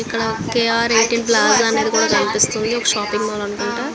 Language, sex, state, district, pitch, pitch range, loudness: Telugu, female, Andhra Pradesh, Visakhapatnam, 225 Hz, 210-235 Hz, -17 LUFS